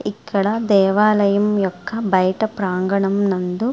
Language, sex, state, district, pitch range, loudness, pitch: Telugu, female, Andhra Pradesh, Srikakulam, 190-210 Hz, -18 LUFS, 200 Hz